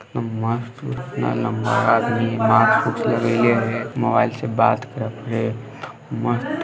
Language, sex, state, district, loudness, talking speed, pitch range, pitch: Hindi, male, Bihar, Madhepura, -20 LUFS, 90 wpm, 110-120 Hz, 115 Hz